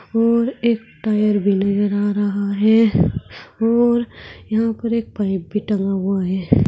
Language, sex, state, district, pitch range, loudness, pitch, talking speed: Hindi, female, Uttar Pradesh, Saharanpur, 200-230 Hz, -19 LUFS, 210 Hz, 155 wpm